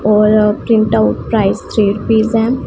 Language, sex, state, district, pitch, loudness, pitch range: Hindi, female, Punjab, Pathankot, 215 Hz, -13 LUFS, 210-225 Hz